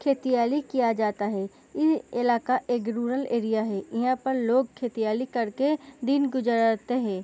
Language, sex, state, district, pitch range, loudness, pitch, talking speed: Hindi, female, Bihar, Gopalganj, 225-265 Hz, -26 LUFS, 245 Hz, 150 wpm